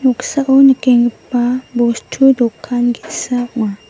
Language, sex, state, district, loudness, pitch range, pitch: Garo, female, Meghalaya, West Garo Hills, -14 LUFS, 240-260 Hz, 245 Hz